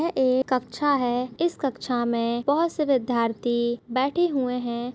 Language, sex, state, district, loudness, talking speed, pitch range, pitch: Hindi, female, Maharashtra, Dhule, -24 LUFS, 155 wpm, 240-280 Hz, 255 Hz